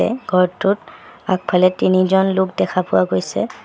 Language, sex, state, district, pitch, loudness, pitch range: Assamese, male, Assam, Sonitpur, 185 Hz, -17 LUFS, 180-190 Hz